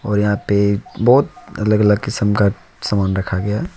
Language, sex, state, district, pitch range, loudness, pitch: Hindi, male, Jharkhand, Ranchi, 100-120 Hz, -17 LUFS, 105 Hz